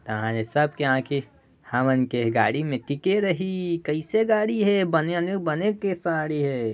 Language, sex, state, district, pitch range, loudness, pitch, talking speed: Chhattisgarhi, male, Chhattisgarh, Raigarh, 130-190 Hz, -24 LUFS, 150 Hz, 170 wpm